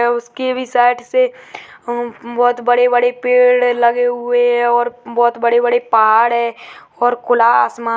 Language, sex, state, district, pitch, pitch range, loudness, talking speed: Hindi, male, Uttarakhand, Uttarkashi, 240 Hz, 235-245 Hz, -14 LUFS, 145 wpm